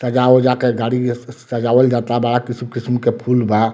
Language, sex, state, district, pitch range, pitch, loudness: Bhojpuri, male, Bihar, Muzaffarpur, 120-125 Hz, 120 Hz, -16 LUFS